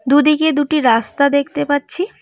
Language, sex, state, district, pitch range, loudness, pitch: Bengali, female, West Bengal, Cooch Behar, 280-305 Hz, -15 LUFS, 290 Hz